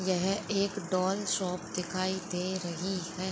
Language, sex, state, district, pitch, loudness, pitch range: Hindi, female, Jharkhand, Sahebganj, 185 Hz, -32 LUFS, 180-190 Hz